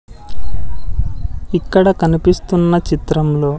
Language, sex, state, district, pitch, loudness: Telugu, male, Andhra Pradesh, Sri Satya Sai, 155 Hz, -15 LUFS